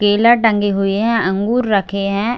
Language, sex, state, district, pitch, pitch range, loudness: Hindi, female, Chhattisgarh, Bilaspur, 205 Hz, 200-230 Hz, -15 LUFS